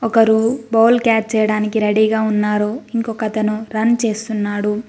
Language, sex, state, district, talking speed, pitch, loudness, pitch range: Telugu, female, Telangana, Mahabubabad, 110 wpm, 220 Hz, -17 LUFS, 215-225 Hz